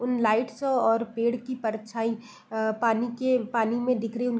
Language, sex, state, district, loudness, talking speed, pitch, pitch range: Hindi, female, Bihar, Gopalganj, -27 LUFS, 175 wpm, 235 Hz, 225-245 Hz